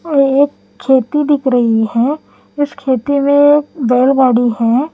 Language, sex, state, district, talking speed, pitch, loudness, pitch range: Hindi, female, Bihar, Katihar, 135 wpm, 275 Hz, -13 LUFS, 245-290 Hz